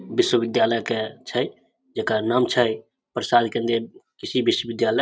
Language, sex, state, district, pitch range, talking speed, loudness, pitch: Maithili, male, Bihar, Samastipur, 110-120 Hz, 120 wpm, -23 LUFS, 115 Hz